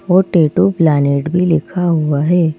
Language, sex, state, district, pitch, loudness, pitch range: Hindi, female, Madhya Pradesh, Bhopal, 170 Hz, -14 LUFS, 150-180 Hz